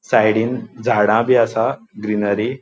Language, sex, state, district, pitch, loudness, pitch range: Konkani, male, Goa, North and South Goa, 110 Hz, -17 LUFS, 105-120 Hz